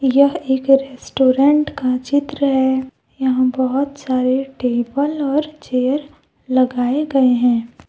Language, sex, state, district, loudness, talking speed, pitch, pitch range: Hindi, female, Jharkhand, Deoghar, -17 LUFS, 115 wpm, 265 Hz, 255-280 Hz